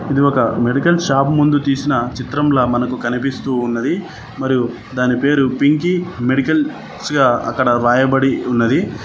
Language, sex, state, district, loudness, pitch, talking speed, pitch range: Telugu, male, Telangana, Mahabubabad, -16 LUFS, 130 Hz, 125 wpm, 120-145 Hz